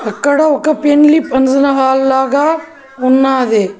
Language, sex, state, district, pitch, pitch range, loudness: Telugu, female, Andhra Pradesh, Annamaya, 270 Hz, 265-295 Hz, -11 LUFS